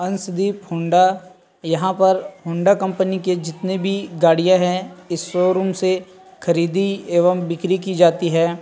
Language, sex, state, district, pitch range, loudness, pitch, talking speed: Hindi, male, Chhattisgarh, Rajnandgaon, 170-190 Hz, -19 LUFS, 185 Hz, 155 wpm